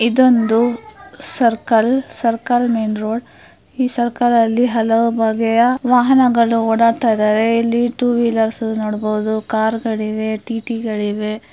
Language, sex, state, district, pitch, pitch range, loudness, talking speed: Kannada, female, Karnataka, Mysore, 230 Hz, 220-240 Hz, -16 LUFS, 100 wpm